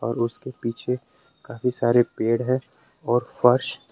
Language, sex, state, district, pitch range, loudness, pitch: Hindi, male, Jharkhand, Palamu, 115-125 Hz, -23 LUFS, 120 Hz